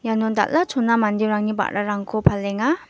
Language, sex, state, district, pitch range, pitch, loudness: Garo, female, Meghalaya, West Garo Hills, 205-245 Hz, 215 Hz, -21 LUFS